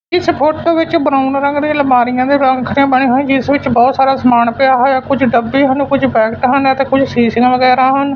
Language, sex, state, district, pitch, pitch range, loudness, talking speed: Punjabi, male, Punjab, Fazilka, 270 Hz, 255-280 Hz, -12 LUFS, 205 wpm